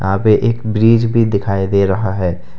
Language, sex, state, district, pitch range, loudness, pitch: Hindi, male, Jharkhand, Deoghar, 95-115 Hz, -14 LUFS, 105 Hz